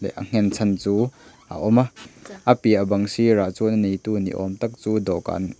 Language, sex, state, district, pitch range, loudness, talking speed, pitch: Mizo, male, Mizoram, Aizawl, 100-115 Hz, -22 LUFS, 195 wpm, 105 Hz